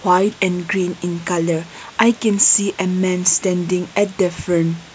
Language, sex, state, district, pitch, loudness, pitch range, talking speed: English, female, Nagaland, Kohima, 180 Hz, -17 LUFS, 175-195 Hz, 170 wpm